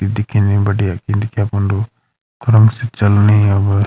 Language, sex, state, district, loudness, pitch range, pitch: Garhwali, male, Uttarakhand, Uttarkashi, -14 LUFS, 100-110 Hz, 105 Hz